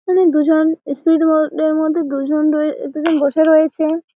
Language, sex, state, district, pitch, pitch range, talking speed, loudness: Bengali, female, West Bengal, Malda, 315 Hz, 300-320 Hz, 160 wpm, -15 LUFS